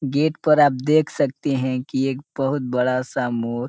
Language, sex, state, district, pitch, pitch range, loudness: Hindi, male, Uttar Pradesh, Ghazipur, 135 Hz, 125-145 Hz, -21 LUFS